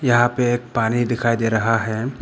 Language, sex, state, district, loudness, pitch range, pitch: Hindi, male, Arunachal Pradesh, Papum Pare, -19 LUFS, 115-120 Hz, 120 Hz